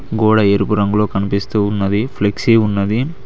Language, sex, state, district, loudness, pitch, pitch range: Telugu, male, Telangana, Mahabubabad, -15 LUFS, 105 Hz, 100-110 Hz